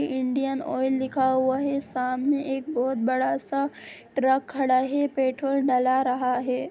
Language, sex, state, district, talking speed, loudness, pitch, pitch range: Hindi, female, Bihar, Sitamarhi, 170 wpm, -25 LUFS, 265 Hz, 255-275 Hz